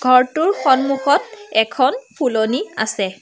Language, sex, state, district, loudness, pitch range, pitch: Assamese, female, Assam, Sonitpur, -17 LUFS, 220-275 Hz, 255 Hz